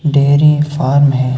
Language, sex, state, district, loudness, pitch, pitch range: Hindi, male, Chhattisgarh, Sukma, -11 LUFS, 145 Hz, 135-150 Hz